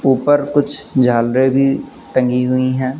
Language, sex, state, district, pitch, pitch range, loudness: Hindi, male, Uttar Pradesh, Lucknow, 130 Hz, 130-140 Hz, -15 LUFS